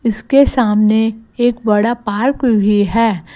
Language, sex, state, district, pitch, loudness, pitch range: Hindi, female, Gujarat, Gandhinagar, 225 Hz, -14 LUFS, 210-240 Hz